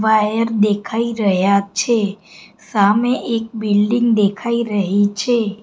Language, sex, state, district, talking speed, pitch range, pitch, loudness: Gujarati, female, Gujarat, Gandhinagar, 105 wpm, 205-230 Hz, 215 Hz, -17 LUFS